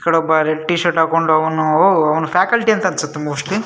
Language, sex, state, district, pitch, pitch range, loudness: Kannada, male, Karnataka, Shimoga, 160 Hz, 155-180 Hz, -15 LUFS